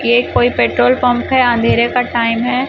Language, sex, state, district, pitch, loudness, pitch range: Hindi, male, Chhattisgarh, Raipur, 245 Hz, -13 LUFS, 235-250 Hz